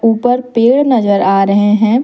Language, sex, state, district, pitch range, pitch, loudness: Hindi, female, Jharkhand, Deoghar, 205-245 Hz, 225 Hz, -11 LUFS